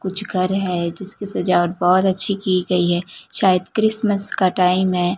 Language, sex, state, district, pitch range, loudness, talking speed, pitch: Hindi, female, Gujarat, Gandhinagar, 180-195 Hz, -17 LUFS, 175 wpm, 185 Hz